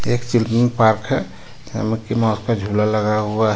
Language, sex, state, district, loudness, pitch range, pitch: Hindi, male, Jharkhand, Ranchi, -19 LUFS, 110-120 Hz, 110 Hz